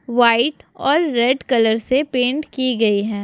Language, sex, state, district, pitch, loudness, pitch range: Hindi, female, Chhattisgarh, Bilaspur, 250 Hz, -17 LUFS, 230-270 Hz